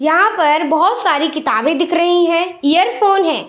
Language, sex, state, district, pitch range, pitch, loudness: Hindi, female, Bihar, Saharsa, 310-365 Hz, 335 Hz, -14 LUFS